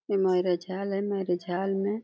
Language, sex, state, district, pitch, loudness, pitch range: Hindi, female, Uttar Pradesh, Deoria, 195 Hz, -28 LUFS, 180-200 Hz